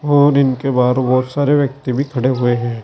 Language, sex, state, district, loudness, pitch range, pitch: Hindi, male, Uttar Pradesh, Saharanpur, -15 LUFS, 125-140 Hz, 130 Hz